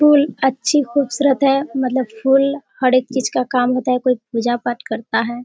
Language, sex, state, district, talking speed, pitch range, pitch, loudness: Hindi, female, Bihar, Kishanganj, 200 wpm, 245-275 Hz, 255 Hz, -17 LUFS